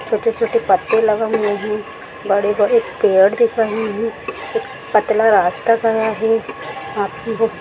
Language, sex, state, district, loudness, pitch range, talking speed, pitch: Hindi, female, Bihar, Jamui, -17 LUFS, 210-230 Hz, 155 wpm, 220 Hz